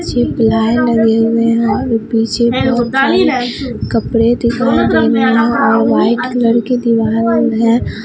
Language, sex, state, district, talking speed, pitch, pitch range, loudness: Hindi, female, Bihar, Katihar, 150 wpm, 230 Hz, 225-245 Hz, -13 LUFS